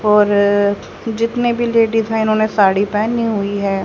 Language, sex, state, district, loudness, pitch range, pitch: Hindi, female, Haryana, Jhajjar, -16 LUFS, 200-225 Hz, 215 Hz